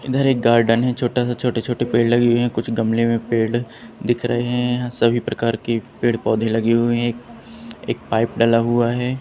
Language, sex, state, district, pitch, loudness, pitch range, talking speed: Hindi, male, Madhya Pradesh, Katni, 120 Hz, -19 LUFS, 115-120 Hz, 210 wpm